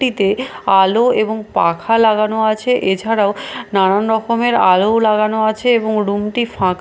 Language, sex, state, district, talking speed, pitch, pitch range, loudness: Bengali, female, Bihar, Katihar, 125 wpm, 215 Hz, 200-225 Hz, -15 LUFS